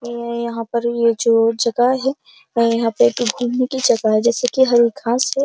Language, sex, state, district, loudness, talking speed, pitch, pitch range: Hindi, female, Uttar Pradesh, Jyotiba Phule Nagar, -17 LUFS, 200 wpm, 235 Hz, 230-250 Hz